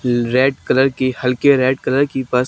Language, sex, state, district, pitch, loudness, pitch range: Hindi, male, Haryana, Charkhi Dadri, 130 Hz, -16 LUFS, 125-135 Hz